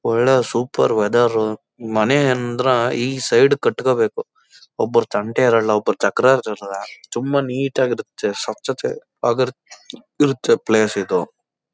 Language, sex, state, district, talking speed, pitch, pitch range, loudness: Kannada, male, Karnataka, Chamarajanagar, 100 wpm, 130 Hz, 115-145 Hz, -18 LUFS